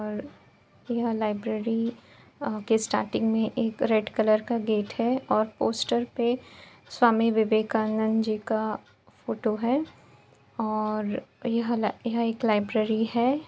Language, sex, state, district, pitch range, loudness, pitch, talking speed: Hindi, female, Uttar Pradesh, Etah, 215-235 Hz, -27 LUFS, 220 Hz, 125 wpm